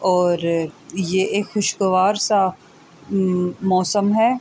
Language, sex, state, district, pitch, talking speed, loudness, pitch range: Urdu, female, Andhra Pradesh, Anantapur, 190 Hz, 95 wpm, -20 LUFS, 180-205 Hz